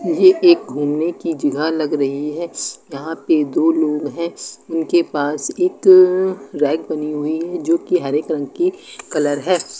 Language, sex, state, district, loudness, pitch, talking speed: Hindi, female, Uttar Pradesh, Lucknow, -18 LUFS, 165 Hz, 170 wpm